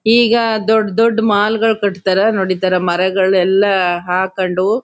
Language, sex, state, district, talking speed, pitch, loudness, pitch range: Kannada, female, Karnataka, Chamarajanagar, 110 wpm, 200 Hz, -14 LUFS, 185-220 Hz